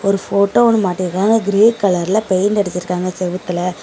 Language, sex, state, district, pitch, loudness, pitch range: Tamil, female, Tamil Nadu, Namakkal, 195 Hz, -16 LUFS, 180-210 Hz